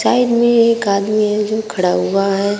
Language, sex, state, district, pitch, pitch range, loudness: Hindi, female, Uttar Pradesh, Shamli, 210 Hz, 200-230 Hz, -15 LUFS